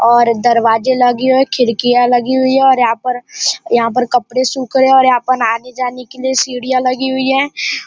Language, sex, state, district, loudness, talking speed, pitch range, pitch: Hindi, male, Maharashtra, Nagpur, -13 LUFS, 220 wpm, 245-260 Hz, 255 Hz